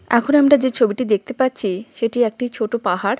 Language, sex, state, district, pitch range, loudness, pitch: Bengali, female, West Bengal, Jhargram, 210-260 Hz, -18 LUFS, 235 Hz